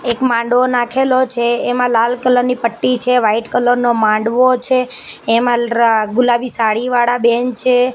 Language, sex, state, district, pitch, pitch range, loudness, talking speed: Gujarati, female, Gujarat, Gandhinagar, 245 Hz, 235-250 Hz, -14 LUFS, 165 wpm